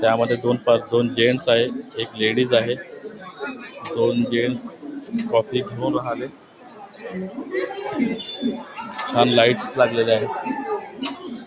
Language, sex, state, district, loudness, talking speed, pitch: Marathi, male, Maharashtra, Nagpur, -21 LUFS, 85 wpm, 120 Hz